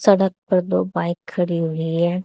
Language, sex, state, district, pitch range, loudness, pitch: Hindi, female, Haryana, Charkhi Dadri, 160-185 Hz, -21 LUFS, 170 Hz